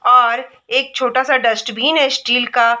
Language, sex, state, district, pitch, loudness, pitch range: Hindi, female, Chhattisgarh, Bilaspur, 250 Hz, -15 LUFS, 235-265 Hz